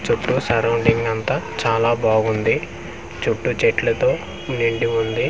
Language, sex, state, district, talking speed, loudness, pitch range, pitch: Telugu, male, Andhra Pradesh, Manyam, 115 wpm, -20 LUFS, 115-130 Hz, 115 Hz